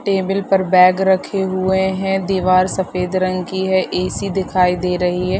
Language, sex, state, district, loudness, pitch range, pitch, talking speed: Hindi, female, Bihar, Madhepura, -17 LUFS, 185-190 Hz, 190 Hz, 190 wpm